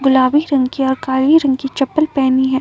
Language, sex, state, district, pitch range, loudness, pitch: Hindi, female, Uttar Pradesh, Muzaffarnagar, 260-280 Hz, -15 LUFS, 270 Hz